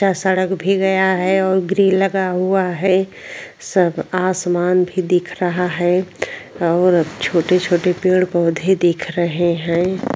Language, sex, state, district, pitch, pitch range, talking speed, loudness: Hindi, female, Uttarakhand, Tehri Garhwal, 185 Hz, 175-190 Hz, 140 wpm, -17 LUFS